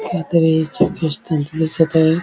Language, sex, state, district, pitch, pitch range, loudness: Marathi, male, Maharashtra, Dhule, 160 Hz, 160-165 Hz, -17 LUFS